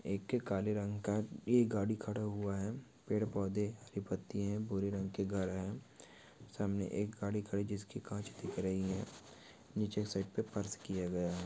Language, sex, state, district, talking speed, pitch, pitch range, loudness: Hindi, male, West Bengal, Malda, 180 wpm, 100 Hz, 100-105 Hz, -39 LUFS